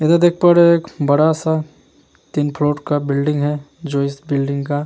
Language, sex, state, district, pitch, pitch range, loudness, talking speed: Hindi, male, Bihar, Vaishali, 150 Hz, 145-160 Hz, -17 LUFS, 220 wpm